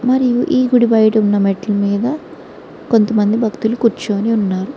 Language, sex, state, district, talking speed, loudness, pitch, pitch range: Telugu, female, Andhra Pradesh, Srikakulam, 140 wpm, -15 LUFS, 220 Hz, 205-245 Hz